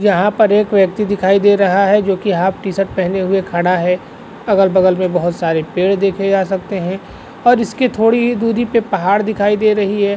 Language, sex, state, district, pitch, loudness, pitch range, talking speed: Hindi, male, Bihar, Lakhisarai, 195 Hz, -14 LUFS, 185-210 Hz, 220 wpm